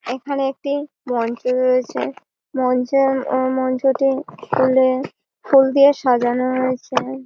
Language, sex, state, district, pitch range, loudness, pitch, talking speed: Bengali, female, West Bengal, Malda, 255-270 Hz, -18 LUFS, 260 Hz, 105 wpm